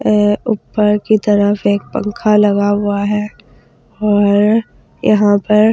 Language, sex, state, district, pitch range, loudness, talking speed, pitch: Hindi, female, Delhi, New Delhi, 205-215 Hz, -14 LUFS, 135 wpm, 210 Hz